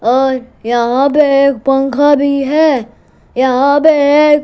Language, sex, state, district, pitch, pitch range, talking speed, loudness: Hindi, female, Gujarat, Gandhinagar, 275 Hz, 260-290 Hz, 135 wpm, -11 LUFS